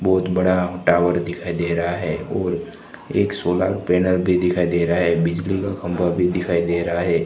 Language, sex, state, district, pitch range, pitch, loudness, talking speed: Hindi, male, Gujarat, Gandhinagar, 85-90 Hz, 90 Hz, -20 LUFS, 200 wpm